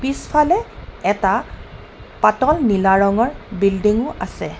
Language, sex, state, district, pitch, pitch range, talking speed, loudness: Assamese, female, Assam, Kamrup Metropolitan, 230 Hz, 200-300 Hz, 90 wpm, -18 LUFS